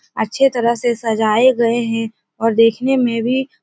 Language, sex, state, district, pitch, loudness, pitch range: Hindi, female, Uttar Pradesh, Etah, 235 Hz, -16 LUFS, 225-255 Hz